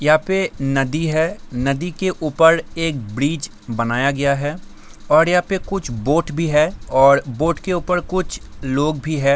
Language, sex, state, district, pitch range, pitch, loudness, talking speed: Hindi, male, Bihar, Darbhanga, 135-170 Hz, 155 Hz, -19 LUFS, 175 wpm